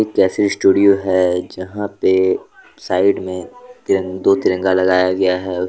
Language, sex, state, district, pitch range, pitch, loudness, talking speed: Hindi, male, Jharkhand, Deoghar, 90-105 Hz, 95 Hz, -16 LUFS, 135 wpm